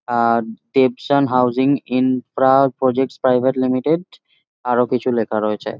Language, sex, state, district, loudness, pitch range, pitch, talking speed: Bengali, male, West Bengal, Jhargram, -18 LUFS, 125-135 Hz, 130 Hz, 115 wpm